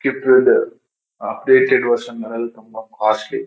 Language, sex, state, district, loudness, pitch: Kannada, male, Karnataka, Shimoga, -16 LUFS, 120 Hz